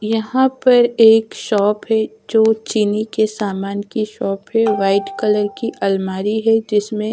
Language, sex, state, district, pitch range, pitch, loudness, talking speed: Hindi, female, Chhattisgarh, Raipur, 205-225 Hz, 215 Hz, -17 LUFS, 150 wpm